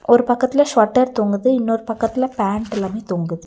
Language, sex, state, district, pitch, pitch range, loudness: Tamil, female, Tamil Nadu, Nilgiris, 225 Hz, 205-255 Hz, -18 LUFS